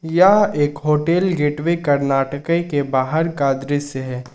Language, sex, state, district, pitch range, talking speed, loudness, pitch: Hindi, male, Jharkhand, Ranchi, 140-165 Hz, 140 wpm, -18 LUFS, 145 Hz